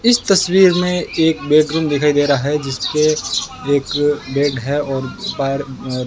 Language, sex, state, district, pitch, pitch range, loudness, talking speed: Hindi, male, Rajasthan, Bikaner, 145 Hz, 140-160 Hz, -16 LUFS, 160 wpm